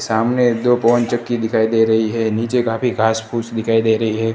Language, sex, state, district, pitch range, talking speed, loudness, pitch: Hindi, male, Gujarat, Gandhinagar, 110-120 Hz, 220 wpm, -17 LUFS, 115 Hz